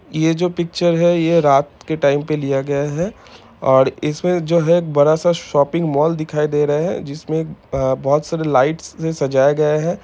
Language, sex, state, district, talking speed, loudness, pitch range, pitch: Hindi, male, Bihar, Gopalganj, 205 wpm, -17 LUFS, 140-170 Hz, 155 Hz